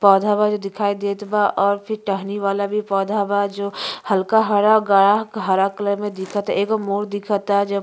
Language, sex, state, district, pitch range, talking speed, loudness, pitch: Bhojpuri, female, Uttar Pradesh, Ghazipur, 200-210 Hz, 190 wpm, -19 LUFS, 200 Hz